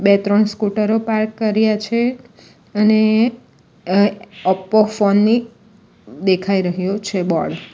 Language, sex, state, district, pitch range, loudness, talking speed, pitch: Gujarati, female, Gujarat, Valsad, 200-220 Hz, -17 LUFS, 115 wpm, 210 Hz